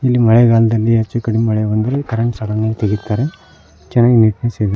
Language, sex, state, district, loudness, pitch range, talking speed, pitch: Kannada, male, Karnataka, Koppal, -15 LUFS, 110-120 Hz, 140 wpm, 110 Hz